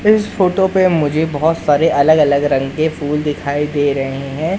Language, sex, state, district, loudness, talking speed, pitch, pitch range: Hindi, male, Madhya Pradesh, Katni, -15 LUFS, 195 wpm, 150 Hz, 145-165 Hz